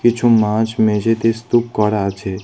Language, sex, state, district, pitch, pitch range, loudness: Bengali, male, West Bengal, Alipurduar, 110 Hz, 105-115 Hz, -16 LUFS